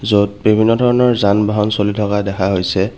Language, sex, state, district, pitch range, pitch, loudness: Assamese, male, Assam, Kamrup Metropolitan, 100-110 Hz, 105 Hz, -15 LUFS